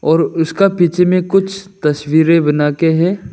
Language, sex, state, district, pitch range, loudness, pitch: Hindi, male, Arunachal Pradesh, Lower Dibang Valley, 160-185 Hz, -13 LUFS, 165 Hz